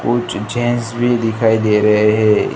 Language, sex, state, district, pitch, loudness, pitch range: Hindi, male, Gujarat, Gandhinagar, 110 Hz, -15 LUFS, 105-120 Hz